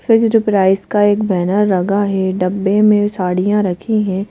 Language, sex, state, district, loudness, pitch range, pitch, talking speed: Hindi, female, Madhya Pradesh, Bhopal, -14 LUFS, 190-210 Hz, 200 Hz, 165 wpm